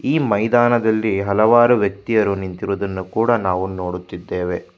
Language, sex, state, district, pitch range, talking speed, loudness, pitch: Kannada, male, Karnataka, Bangalore, 95-115 Hz, 100 wpm, -18 LUFS, 100 Hz